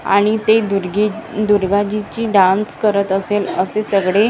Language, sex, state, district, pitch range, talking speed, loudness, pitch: Marathi, female, Maharashtra, Gondia, 195-215 Hz, 140 wpm, -16 LUFS, 205 Hz